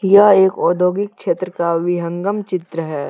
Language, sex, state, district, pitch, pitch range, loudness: Hindi, male, Jharkhand, Deoghar, 180 Hz, 170-200 Hz, -17 LUFS